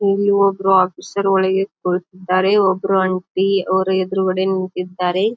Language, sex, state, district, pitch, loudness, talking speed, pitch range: Kannada, female, Karnataka, Bijapur, 190 Hz, -17 LUFS, 110 wpm, 185-195 Hz